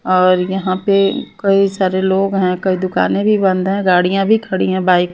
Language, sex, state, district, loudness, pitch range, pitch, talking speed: Hindi, female, Maharashtra, Mumbai Suburban, -15 LUFS, 185-195 Hz, 190 Hz, 210 wpm